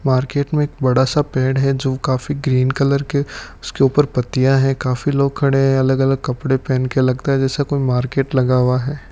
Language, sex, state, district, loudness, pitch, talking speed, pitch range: Hindi, male, Rajasthan, Bikaner, -17 LUFS, 135 Hz, 205 wpm, 130-140 Hz